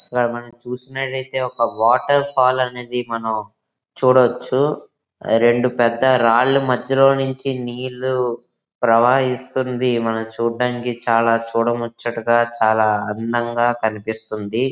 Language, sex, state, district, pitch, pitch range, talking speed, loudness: Telugu, male, Andhra Pradesh, Visakhapatnam, 120 Hz, 115-130 Hz, 100 wpm, -18 LUFS